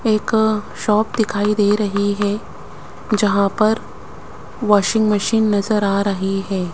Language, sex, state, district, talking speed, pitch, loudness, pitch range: Hindi, female, Rajasthan, Jaipur, 125 wpm, 210 Hz, -18 LUFS, 200-215 Hz